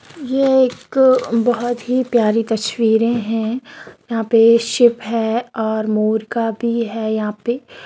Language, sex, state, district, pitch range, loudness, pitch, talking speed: Hindi, female, Bihar, Darbhanga, 225-245 Hz, -17 LUFS, 230 Hz, 135 wpm